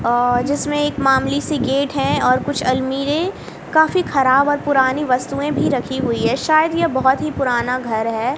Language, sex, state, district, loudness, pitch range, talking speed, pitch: Hindi, female, Haryana, Rohtak, -17 LUFS, 255-295 Hz, 185 wpm, 270 Hz